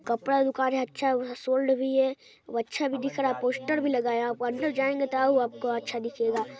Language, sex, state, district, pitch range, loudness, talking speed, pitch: Hindi, male, Chhattisgarh, Sarguja, 240-270 Hz, -27 LUFS, 255 wpm, 265 Hz